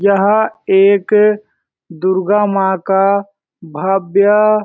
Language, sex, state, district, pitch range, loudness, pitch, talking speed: Hindi, male, Chhattisgarh, Balrampur, 190-210 Hz, -13 LUFS, 200 Hz, 90 wpm